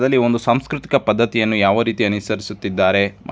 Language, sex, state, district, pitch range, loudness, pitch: Kannada, male, Karnataka, Dharwad, 100-120 Hz, -18 LUFS, 115 Hz